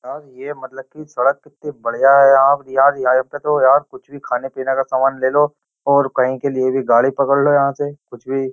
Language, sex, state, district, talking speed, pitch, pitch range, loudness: Hindi, male, Uttar Pradesh, Jyotiba Phule Nagar, 245 wpm, 135 Hz, 130-145 Hz, -16 LUFS